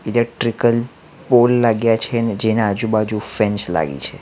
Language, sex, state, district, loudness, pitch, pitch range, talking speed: Gujarati, male, Gujarat, Valsad, -17 LUFS, 115 Hz, 105-120 Hz, 140 wpm